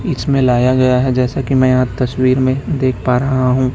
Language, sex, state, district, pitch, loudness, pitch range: Hindi, male, Chhattisgarh, Raipur, 130 Hz, -14 LUFS, 125-130 Hz